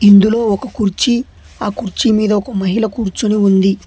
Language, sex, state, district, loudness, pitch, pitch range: Telugu, male, Telangana, Hyderabad, -14 LUFS, 210 Hz, 200-225 Hz